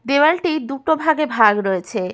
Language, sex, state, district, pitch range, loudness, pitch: Bengali, female, West Bengal, Paschim Medinipur, 215-315 Hz, -17 LUFS, 275 Hz